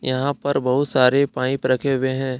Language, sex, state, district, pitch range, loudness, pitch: Hindi, male, Jharkhand, Deoghar, 130-140 Hz, -20 LUFS, 130 Hz